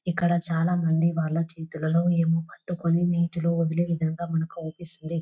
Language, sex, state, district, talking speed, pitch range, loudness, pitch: Telugu, female, Telangana, Nalgonda, 125 wpm, 165-170 Hz, -26 LUFS, 165 Hz